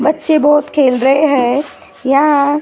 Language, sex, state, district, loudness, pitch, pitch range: Hindi, female, Maharashtra, Gondia, -12 LUFS, 285 Hz, 270-300 Hz